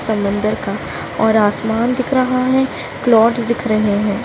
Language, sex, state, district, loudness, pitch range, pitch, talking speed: Hindi, female, Uttarakhand, Uttarkashi, -16 LUFS, 215-255 Hz, 225 Hz, 155 wpm